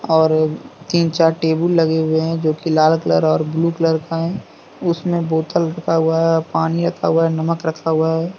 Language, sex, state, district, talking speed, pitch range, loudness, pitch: Hindi, male, Jharkhand, Deoghar, 215 wpm, 160-165 Hz, -17 LUFS, 165 Hz